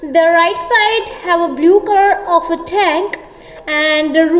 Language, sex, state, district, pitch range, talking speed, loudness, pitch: English, female, Punjab, Kapurthala, 330-395 Hz, 175 wpm, -13 LUFS, 340 Hz